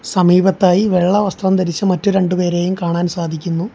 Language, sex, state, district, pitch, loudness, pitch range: Malayalam, male, Kerala, Kollam, 180 Hz, -15 LUFS, 175-190 Hz